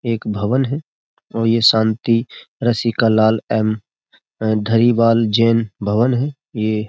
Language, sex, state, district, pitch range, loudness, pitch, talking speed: Hindi, male, Uttar Pradesh, Jyotiba Phule Nagar, 110-115 Hz, -17 LUFS, 115 Hz, 130 wpm